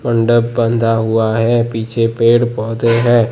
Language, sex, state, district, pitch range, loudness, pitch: Hindi, male, Gujarat, Gandhinagar, 115-120 Hz, -14 LUFS, 115 Hz